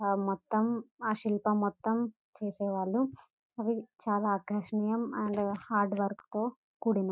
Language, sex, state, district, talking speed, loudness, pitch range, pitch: Telugu, female, Telangana, Karimnagar, 120 wpm, -33 LUFS, 200-225 Hz, 210 Hz